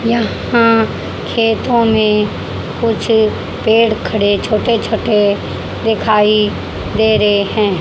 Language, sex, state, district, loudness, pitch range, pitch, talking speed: Hindi, female, Haryana, Charkhi Dadri, -14 LUFS, 210-230 Hz, 220 Hz, 90 wpm